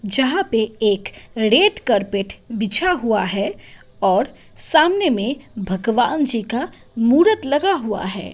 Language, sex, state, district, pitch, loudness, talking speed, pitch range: Hindi, female, Delhi, New Delhi, 230 Hz, -18 LUFS, 130 wpm, 205-300 Hz